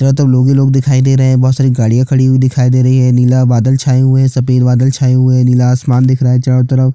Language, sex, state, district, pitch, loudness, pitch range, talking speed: Hindi, male, Chhattisgarh, Jashpur, 130 Hz, -10 LUFS, 125-130 Hz, 300 wpm